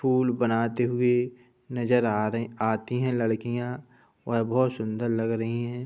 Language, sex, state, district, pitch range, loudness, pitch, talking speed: Hindi, male, Uttar Pradesh, Budaun, 115-125 Hz, -27 LUFS, 120 Hz, 165 wpm